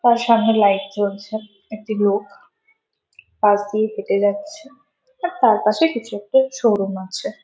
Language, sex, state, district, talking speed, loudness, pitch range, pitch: Bengali, female, West Bengal, Malda, 145 wpm, -19 LUFS, 205-285 Hz, 220 Hz